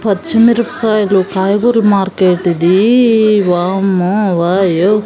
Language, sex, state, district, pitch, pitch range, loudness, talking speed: Telugu, female, Andhra Pradesh, Sri Satya Sai, 195 Hz, 185-220 Hz, -11 LUFS, 85 wpm